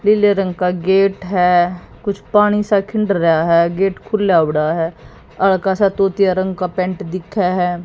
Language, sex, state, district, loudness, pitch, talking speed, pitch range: Hindi, female, Haryana, Jhajjar, -16 LUFS, 190 Hz, 175 wpm, 180-200 Hz